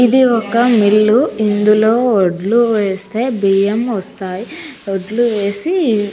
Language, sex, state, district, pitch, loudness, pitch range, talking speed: Telugu, female, Telangana, Nalgonda, 215 Hz, -14 LUFS, 200-240 Hz, 80 wpm